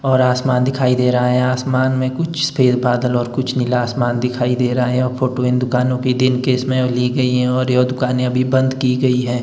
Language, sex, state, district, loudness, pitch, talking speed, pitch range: Hindi, male, Himachal Pradesh, Shimla, -17 LUFS, 125 Hz, 250 wpm, 125-130 Hz